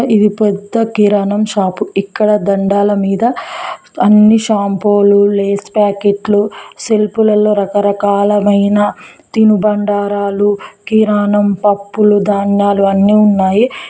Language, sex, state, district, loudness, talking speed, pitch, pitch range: Telugu, female, Telangana, Mahabubabad, -12 LUFS, 90 wpm, 205 Hz, 200-210 Hz